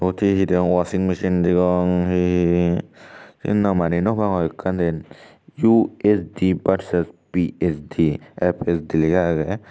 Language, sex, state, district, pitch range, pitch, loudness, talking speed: Chakma, male, Tripura, Unakoti, 85-95 Hz, 90 Hz, -20 LUFS, 125 wpm